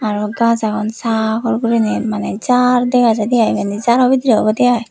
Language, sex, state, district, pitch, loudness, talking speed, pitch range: Chakma, female, Tripura, West Tripura, 230 Hz, -15 LUFS, 185 wpm, 215-245 Hz